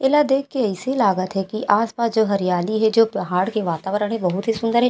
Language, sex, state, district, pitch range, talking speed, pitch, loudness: Chhattisgarhi, female, Chhattisgarh, Raigarh, 190-235 Hz, 270 wpm, 215 Hz, -20 LUFS